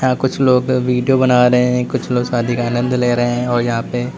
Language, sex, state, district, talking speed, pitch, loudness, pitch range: Hindi, male, Uttar Pradesh, Lalitpur, 260 wpm, 125 Hz, -15 LUFS, 120-125 Hz